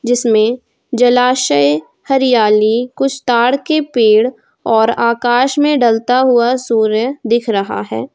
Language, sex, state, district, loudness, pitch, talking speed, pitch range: Hindi, female, Jharkhand, Ranchi, -13 LUFS, 240 Hz, 120 wpm, 220-255 Hz